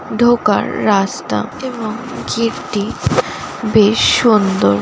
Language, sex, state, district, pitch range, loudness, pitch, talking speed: Bengali, female, West Bengal, Paschim Medinipur, 205-240 Hz, -15 LUFS, 215 Hz, 75 wpm